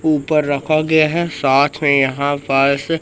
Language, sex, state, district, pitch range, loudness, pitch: Hindi, male, Madhya Pradesh, Katni, 140-155 Hz, -16 LUFS, 150 Hz